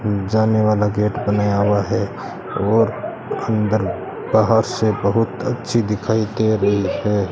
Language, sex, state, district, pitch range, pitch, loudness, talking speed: Hindi, male, Rajasthan, Bikaner, 105-110 Hz, 105 Hz, -19 LUFS, 130 wpm